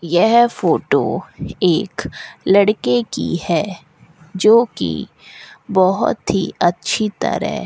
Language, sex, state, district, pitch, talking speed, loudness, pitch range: Hindi, female, Rajasthan, Bikaner, 190 Hz, 100 wpm, -17 LUFS, 170-215 Hz